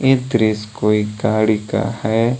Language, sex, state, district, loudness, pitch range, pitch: Hindi, male, Jharkhand, Deoghar, -18 LUFS, 105-115 Hz, 110 Hz